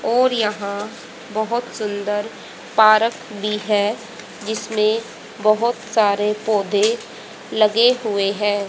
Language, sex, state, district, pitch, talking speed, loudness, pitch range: Hindi, female, Haryana, Jhajjar, 215 Hz, 90 wpm, -19 LUFS, 210-225 Hz